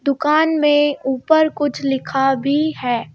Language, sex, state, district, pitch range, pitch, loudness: Hindi, female, Madhya Pradesh, Bhopal, 270-305 Hz, 285 Hz, -17 LUFS